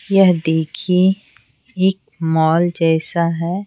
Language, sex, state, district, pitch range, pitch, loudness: Hindi, female, Bihar, Patna, 160-190 Hz, 170 Hz, -17 LUFS